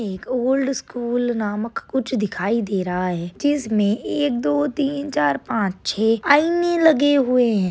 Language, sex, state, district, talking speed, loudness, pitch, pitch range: Marathi, female, Maharashtra, Sindhudurg, 155 wpm, -20 LUFS, 240 Hz, 205-285 Hz